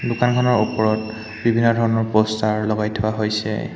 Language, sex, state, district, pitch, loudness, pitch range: Assamese, male, Assam, Hailakandi, 110 Hz, -19 LUFS, 110-115 Hz